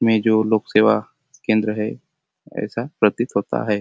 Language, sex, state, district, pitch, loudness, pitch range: Hindi, male, Chhattisgarh, Bastar, 110 Hz, -20 LUFS, 105-110 Hz